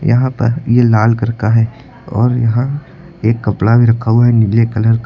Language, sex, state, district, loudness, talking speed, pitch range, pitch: Hindi, male, Uttar Pradesh, Lucknow, -13 LUFS, 215 wpm, 115-120 Hz, 115 Hz